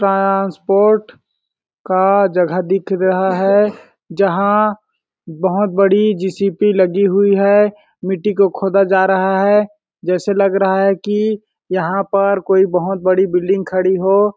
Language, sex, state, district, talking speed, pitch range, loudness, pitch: Hindi, male, Chhattisgarh, Balrampur, 140 wpm, 190-200 Hz, -15 LUFS, 195 Hz